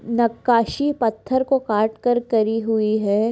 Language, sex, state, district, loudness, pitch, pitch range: Hindi, female, Andhra Pradesh, Anantapur, -20 LUFS, 230 Hz, 220-245 Hz